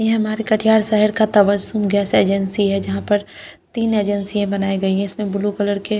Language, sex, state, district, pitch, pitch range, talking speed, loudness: Hindi, female, Bihar, Katihar, 205 Hz, 200-215 Hz, 210 wpm, -18 LUFS